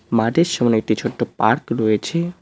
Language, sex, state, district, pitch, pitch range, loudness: Bengali, male, West Bengal, Cooch Behar, 115 Hz, 110-165 Hz, -19 LUFS